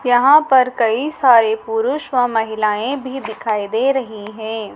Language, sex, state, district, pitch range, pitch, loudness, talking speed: Hindi, female, Madhya Pradesh, Dhar, 220-265 Hz, 235 Hz, -16 LUFS, 150 wpm